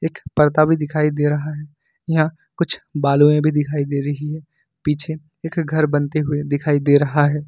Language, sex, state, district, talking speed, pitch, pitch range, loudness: Hindi, male, Jharkhand, Ranchi, 190 wpm, 150 Hz, 145-155 Hz, -19 LUFS